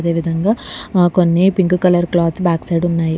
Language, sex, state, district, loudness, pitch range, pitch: Telugu, female, Telangana, Hyderabad, -15 LUFS, 170-180 Hz, 175 Hz